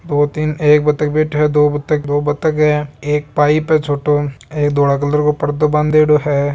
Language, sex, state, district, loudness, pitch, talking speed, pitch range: Marwari, male, Rajasthan, Nagaur, -15 LUFS, 150 Hz, 200 wpm, 145-150 Hz